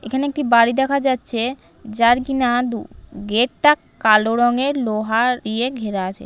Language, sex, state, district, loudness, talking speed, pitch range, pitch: Bengali, female, West Bengal, Kolkata, -18 LUFS, 145 wpm, 225-265 Hz, 240 Hz